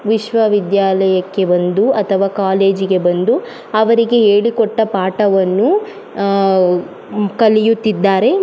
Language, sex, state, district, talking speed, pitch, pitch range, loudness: Kannada, female, Karnataka, Mysore, 95 wpm, 200 Hz, 190-220 Hz, -14 LUFS